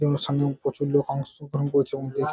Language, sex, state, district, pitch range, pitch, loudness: Bengali, male, West Bengal, Jhargram, 140-145 Hz, 140 Hz, -26 LUFS